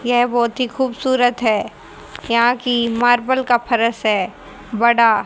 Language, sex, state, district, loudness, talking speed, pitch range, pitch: Hindi, female, Haryana, Rohtak, -17 LUFS, 135 wpm, 230-245 Hz, 240 Hz